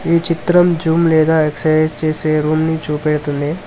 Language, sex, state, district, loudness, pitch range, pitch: Telugu, male, Telangana, Hyderabad, -15 LUFS, 155-165 Hz, 155 Hz